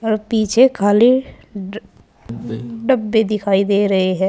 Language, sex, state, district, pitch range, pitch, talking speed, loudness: Hindi, female, Uttar Pradesh, Saharanpur, 200-230 Hz, 215 Hz, 125 wpm, -16 LUFS